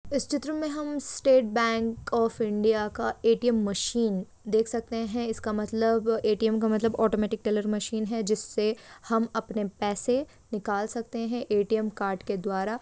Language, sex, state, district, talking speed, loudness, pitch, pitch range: Hindi, female, Chhattisgarh, Sukma, 160 wpm, -28 LUFS, 225 Hz, 215-230 Hz